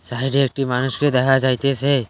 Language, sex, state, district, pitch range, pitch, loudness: Bengali, male, West Bengal, Cooch Behar, 125-140 Hz, 135 Hz, -19 LUFS